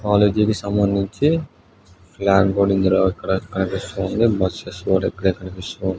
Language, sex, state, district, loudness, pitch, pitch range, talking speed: Telugu, male, Andhra Pradesh, Guntur, -20 LUFS, 95 Hz, 95-105 Hz, 120 wpm